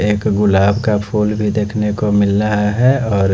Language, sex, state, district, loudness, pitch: Hindi, male, Chhattisgarh, Raipur, -15 LUFS, 105 Hz